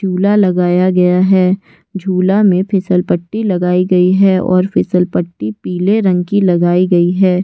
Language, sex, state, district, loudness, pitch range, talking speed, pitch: Hindi, female, Chhattisgarh, Kabirdham, -13 LUFS, 180-195 Hz, 145 wpm, 185 Hz